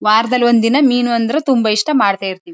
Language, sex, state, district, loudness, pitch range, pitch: Kannada, female, Karnataka, Mysore, -14 LUFS, 215-255 Hz, 235 Hz